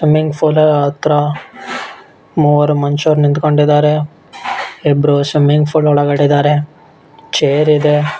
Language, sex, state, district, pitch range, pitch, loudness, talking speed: Kannada, male, Karnataka, Bellary, 145-155 Hz, 150 Hz, -13 LUFS, 95 wpm